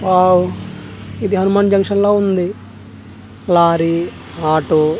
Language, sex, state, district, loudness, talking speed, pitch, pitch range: Telugu, male, Andhra Pradesh, Manyam, -15 LUFS, 110 wpm, 170 Hz, 115-195 Hz